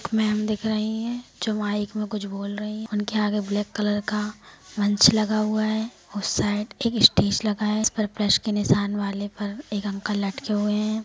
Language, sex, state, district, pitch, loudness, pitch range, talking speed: Hindi, female, Jharkhand, Sahebganj, 210 Hz, -24 LUFS, 205-215 Hz, 200 wpm